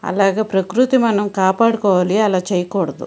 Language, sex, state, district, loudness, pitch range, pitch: Telugu, female, Andhra Pradesh, Srikakulam, -16 LUFS, 190-220 Hz, 200 Hz